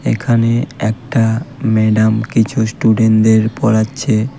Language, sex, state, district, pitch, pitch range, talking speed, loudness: Bengali, male, West Bengal, Cooch Behar, 110 Hz, 110-120 Hz, 80 wpm, -14 LUFS